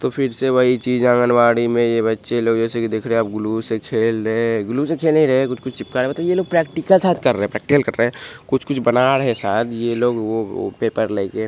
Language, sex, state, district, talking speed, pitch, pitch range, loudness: Hindi, male, Bihar, Supaul, 255 wpm, 120 Hz, 115-130 Hz, -18 LUFS